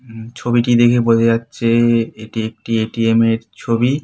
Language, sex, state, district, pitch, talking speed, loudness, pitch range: Bengali, male, West Bengal, Kolkata, 115 Hz, 150 wpm, -16 LUFS, 115-120 Hz